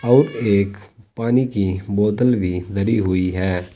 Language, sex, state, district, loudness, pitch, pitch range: Hindi, male, Uttar Pradesh, Saharanpur, -19 LUFS, 100 Hz, 95-115 Hz